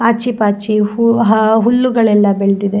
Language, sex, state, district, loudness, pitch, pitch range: Kannada, female, Karnataka, Shimoga, -13 LUFS, 220 Hz, 205-230 Hz